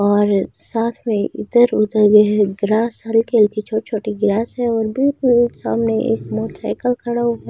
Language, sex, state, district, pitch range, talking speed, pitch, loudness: Hindi, female, Delhi, New Delhi, 205-235 Hz, 145 wpm, 220 Hz, -17 LUFS